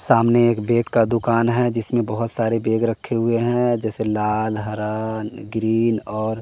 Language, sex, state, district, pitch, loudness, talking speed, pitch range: Hindi, male, Bihar, West Champaran, 115 Hz, -20 LUFS, 170 wpm, 110-115 Hz